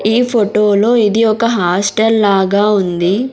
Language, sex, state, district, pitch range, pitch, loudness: Telugu, female, Andhra Pradesh, Sri Satya Sai, 200-225 Hz, 210 Hz, -12 LUFS